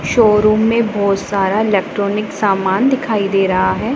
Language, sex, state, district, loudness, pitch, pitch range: Hindi, female, Punjab, Pathankot, -15 LUFS, 205 Hz, 195-220 Hz